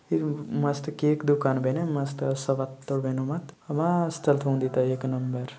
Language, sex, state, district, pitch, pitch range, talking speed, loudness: Halbi, male, Chhattisgarh, Bastar, 140 Hz, 130-150 Hz, 160 wpm, -27 LUFS